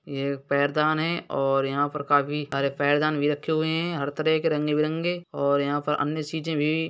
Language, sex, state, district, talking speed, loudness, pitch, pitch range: Hindi, male, Uttar Pradesh, Hamirpur, 210 wpm, -25 LUFS, 150 Hz, 140-155 Hz